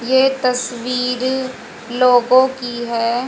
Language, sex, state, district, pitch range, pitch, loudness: Hindi, female, Haryana, Jhajjar, 240-255 Hz, 250 Hz, -17 LUFS